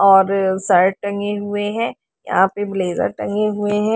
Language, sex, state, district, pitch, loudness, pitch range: Hindi, female, Haryana, Rohtak, 205 Hz, -18 LUFS, 195-205 Hz